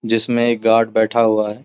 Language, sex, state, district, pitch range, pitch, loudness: Hindi, male, Bihar, Samastipur, 110-120 Hz, 115 Hz, -16 LUFS